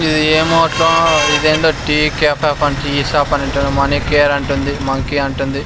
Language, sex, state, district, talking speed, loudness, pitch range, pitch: Telugu, male, Andhra Pradesh, Sri Satya Sai, 150 wpm, -14 LUFS, 140-155 Hz, 145 Hz